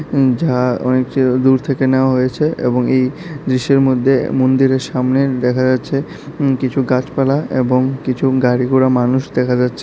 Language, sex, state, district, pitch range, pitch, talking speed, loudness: Bengali, male, Tripura, South Tripura, 125-135 Hz, 130 Hz, 145 wpm, -15 LUFS